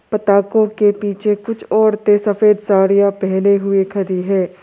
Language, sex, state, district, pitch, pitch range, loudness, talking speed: Hindi, male, Arunachal Pradesh, Lower Dibang Valley, 200 Hz, 195-210 Hz, -15 LUFS, 140 wpm